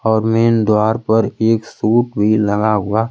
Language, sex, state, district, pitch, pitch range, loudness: Hindi, male, Bihar, Kaimur, 110 Hz, 105-115 Hz, -15 LUFS